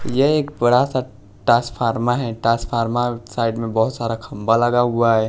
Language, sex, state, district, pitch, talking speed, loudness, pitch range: Hindi, male, Bihar, West Champaran, 120 Hz, 170 wpm, -19 LUFS, 115-120 Hz